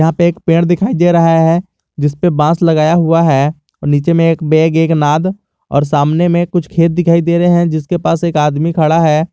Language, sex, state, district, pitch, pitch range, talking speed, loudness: Hindi, male, Jharkhand, Garhwa, 165 Hz, 155-170 Hz, 210 wpm, -12 LUFS